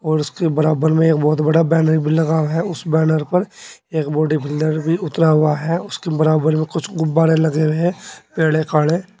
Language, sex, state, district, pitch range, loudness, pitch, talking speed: Hindi, male, Uttar Pradesh, Saharanpur, 155-165 Hz, -17 LUFS, 160 Hz, 195 wpm